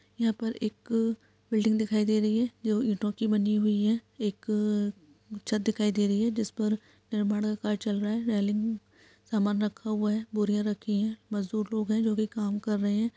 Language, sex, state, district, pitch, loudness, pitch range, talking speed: Hindi, female, Bihar, Saharsa, 215 Hz, -29 LUFS, 210-220 Hz, 200 wpm